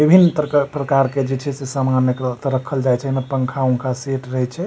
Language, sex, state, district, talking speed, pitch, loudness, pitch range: Maithili, male, Bihar, Supaul, 230 wpm, 135 Hz, -19 LUFS, 130-140 Hz